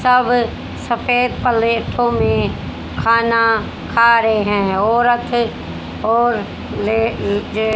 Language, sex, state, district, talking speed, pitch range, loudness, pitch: Hindi, female, Haryana, Rohtak, 95 wpm, 220-240 Hz, -16 LUFS, 230 Hz